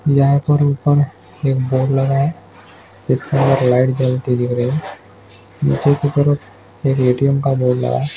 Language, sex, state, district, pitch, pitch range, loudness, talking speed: Hindi, male, Bihar, Gaya, 130 Hz, 120-140 Hz, -16 LUFS, 170 wpm